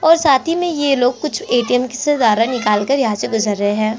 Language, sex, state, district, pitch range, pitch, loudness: Hindi, female, Chhattisgarh, Korba, 220-290 Hz, 250 Hz, -16 LUFS